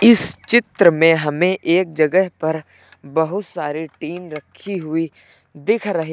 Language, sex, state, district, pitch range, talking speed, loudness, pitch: Hindi, male, Uttar Pradesh, Lucknow, 155-190 Hz, 135 wpm, -18 LUFS, 165 Hz